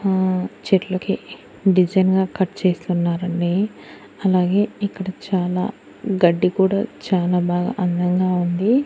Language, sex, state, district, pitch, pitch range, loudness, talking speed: Telugu, female, Andhra Pradesh, Annamaya, 185 Hz, 180-195 Hz, -20 LUFS, 100 wpm